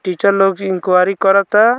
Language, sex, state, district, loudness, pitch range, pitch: Bhojpuri, male, Bihar, Muzaffarpur, -14 LUFS, 185-200 Hz, 195 Hz